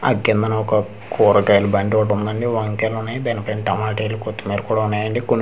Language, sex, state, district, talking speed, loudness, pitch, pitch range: Telugu, male, Andhra Pradesh, Manyam, 200 wpm, -19 LUFS, 110 Hz, 105-110 Hz